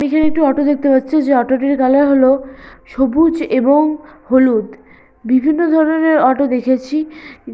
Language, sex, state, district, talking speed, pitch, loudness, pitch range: Bengali, female, West Bengal, Purulia, 145 wpm, 280 Hz, -14 LUFS, 260-305 Hz